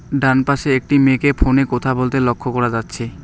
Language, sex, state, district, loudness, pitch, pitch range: Bengali, male, West Bengal, Alipurduar, -16 LUFS, 130 Hz, 125-140 Hz